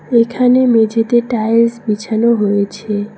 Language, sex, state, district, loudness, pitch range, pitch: Bengali, female, West Bengal, Cooch Behar, -14 LUFS, 210-235 Hz, 225 Hz